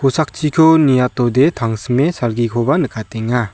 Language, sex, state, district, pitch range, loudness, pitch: Garo, male, Meghalaya, South Garo Hills, 115-150 Hz, -15 LUFS, 125 Hz